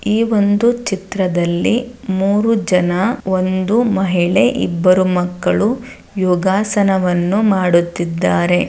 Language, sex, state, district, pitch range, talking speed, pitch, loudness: Kannada, female, Karnataka, Dharwad, 180-210 Hz, 75 wpm, 190 Hz, -15 LUFS